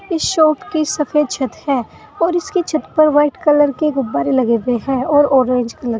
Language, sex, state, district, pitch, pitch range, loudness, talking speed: Hindi, female, Uttar Pradesh, Saharanpur, 295 Hz, 260-310 Hz, -16 LUFS, 200 wpm